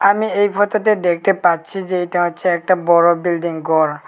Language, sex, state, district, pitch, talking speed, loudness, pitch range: Bengali, male, Tripura, Unakoti, 175 Hz, 205 wpm, -16 LUFS, 170-195 Hz